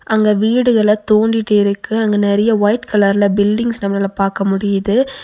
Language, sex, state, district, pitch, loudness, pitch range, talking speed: Tamil, female, Tamil Nadu, Nilgiris, 210 Hz, -14 LUFS, 200-220 Hz, 150 wpm